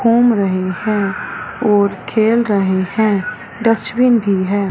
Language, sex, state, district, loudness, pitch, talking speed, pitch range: Hindi, female, Punjab, Fazilka, -16 LUFS, 205 Hz, 125 wpm, 195-225 Hz